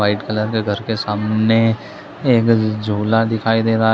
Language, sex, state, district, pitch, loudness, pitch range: Hindi, male, Chhattisgarh, Bilaspur, 110 Hz, -17 LUFS, 105-115 Hz